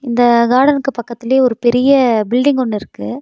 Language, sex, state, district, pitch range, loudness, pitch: Tamil, female, Tamil Nadu, Nilgiris, 235-260 Hz, -13 LUFS, 245 Hz